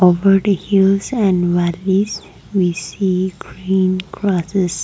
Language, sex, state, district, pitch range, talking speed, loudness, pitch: English, female, Nagaland, Kohima, 180-195 Hz, 125 wpm, -17 LUFS, 190 Hz